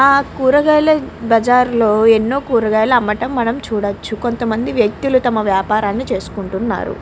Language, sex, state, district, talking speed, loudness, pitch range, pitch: Telugu, female, Andhra Pradesh, Krishna, 130 wpm, -15 LUFS, 215-255 Hz, 235 Hz